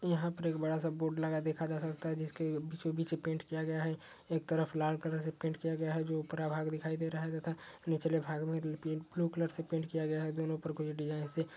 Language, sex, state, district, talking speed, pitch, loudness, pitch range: Hindi, male, Uttar Pradesh, Etah, 280 wpm, 160 Hz, -37 LUFS, 155-165 Hz